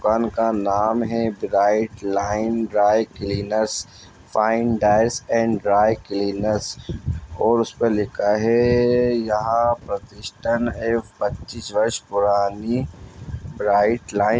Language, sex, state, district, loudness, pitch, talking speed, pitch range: Hindi, male, Bihar, Muzaffarpur, -21 LUFS, 110 Hz, 110 wpm, 100-115 Hz